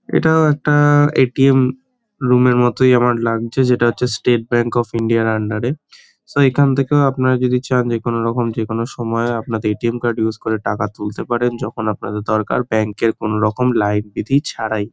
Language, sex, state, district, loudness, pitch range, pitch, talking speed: Bengali, male, West Bengal, Kolkata, -17 LUFS, 110-130 Hz, 120 Hz, 190 wpm